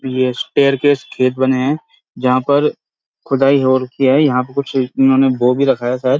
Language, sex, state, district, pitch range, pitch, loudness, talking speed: Hindi, male, Uttarakhand, Uttarkashi, 130-140 Hz, 130 Hz, -15 LUFS, 205 wpm